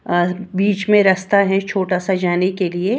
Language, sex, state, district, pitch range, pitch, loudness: Hindi, female, Maharashtra, Washim, 185-200 Hz, 190 Hz, -17 LUFS